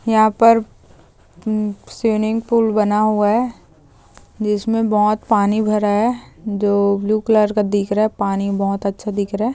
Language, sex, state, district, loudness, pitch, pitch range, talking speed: Hindi, female, Maharashtra, Solapur, -17 LUFS, 215 Hz, 205-220 Hz, 155 wpm